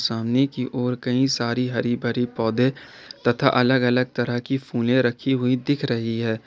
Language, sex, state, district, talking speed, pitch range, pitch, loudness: Hindi, male, Jharkhand, Ranchi, 175 wpm, 120-130 Hz, 125 Hz, -22 LUFS